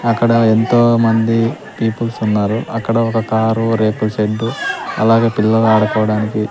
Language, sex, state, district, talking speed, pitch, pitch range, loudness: Telugu, male, Andhra Pradesh, Sri Satya Sai, 120 wpm, 115 Hz, 110-115 Hz, -15 LUFS